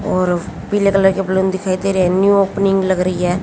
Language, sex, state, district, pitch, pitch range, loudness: Hindi, female, Haryana, Jhajjar, 190 Hz, 185-195 Hz, -16 LUFS